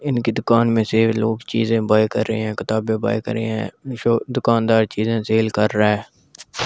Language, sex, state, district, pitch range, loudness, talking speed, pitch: Hindi, male, Delhi, New Delhi, 110-115 Hz, -19 LUFS, 200 wpm, 110 Hz